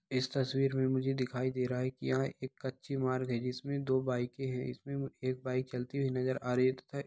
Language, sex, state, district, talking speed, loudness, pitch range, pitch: Hindi, male, Bihar, Samastipur, 245 wpm, -35 LUFS, 130-135 Hz, 130 Hz